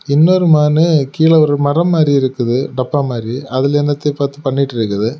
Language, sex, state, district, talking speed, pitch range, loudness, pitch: Tamil, male, Tamil Nadu, Kanyakumari, 150 wpm, 130-155 Hz, -14 LUFS, 145 Hz